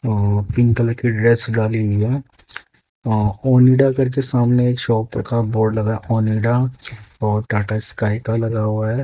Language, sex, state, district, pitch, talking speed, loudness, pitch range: Hindi, male, Haryana, Jhajjar, 115 Hz, 155 wpm, -18 LUFS, 110-120 Hz